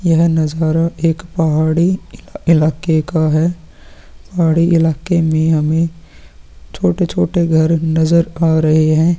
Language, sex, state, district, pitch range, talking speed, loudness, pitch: Hindi, male, Uttarakhand, Tehri Garhwal, 155-165 Hz, 110 wpm, -14 LUFS, 160 Hz